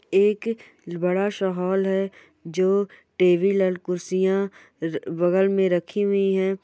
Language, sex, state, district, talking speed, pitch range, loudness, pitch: Hindi, female, Bihar, Bhagalpur, 125 wpm, 180-195 Hz, -23 LUFS, 190 Hz